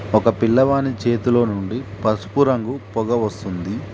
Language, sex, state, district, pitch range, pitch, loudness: Telugu, male, Telangana, Mahabubabad, 105-125 Hz, 115 Hz, -20 LUFS